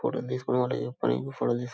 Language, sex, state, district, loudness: Telugu, male, Telangana, Karimnagar, -29 LUFS